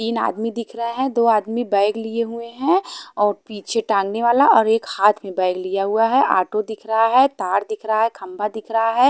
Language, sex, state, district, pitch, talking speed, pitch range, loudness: Hindi, female, Haryana, Charkhi Dadri, 220 Hz, 230 wpm, 205-235 Hz, -19 LUFS